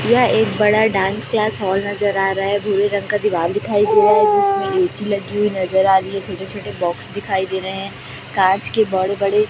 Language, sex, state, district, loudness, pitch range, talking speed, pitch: Hindi, female, Chhattisgarh, Raipur, -17 LUFS, 195-210 Hz, 235 wpm, 205 Hz